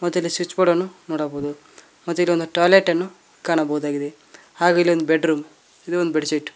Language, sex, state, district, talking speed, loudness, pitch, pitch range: Kannada, male, Karnataka, Koppal, 165 wpm, -20 LUFS, 170 Hz, 155-175 Hz